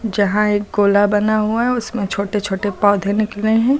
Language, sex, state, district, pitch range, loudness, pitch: Hindi, female, Uttar Pradesh, Lucknow, 205-220 Hz, -17 LUFS, 210 Hz